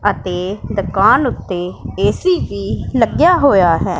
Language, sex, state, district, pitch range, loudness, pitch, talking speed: Punjabi, female, Punjab, Pathankot, 180-205 Hz, -15 LUFS, 190 Hz, 120 wpm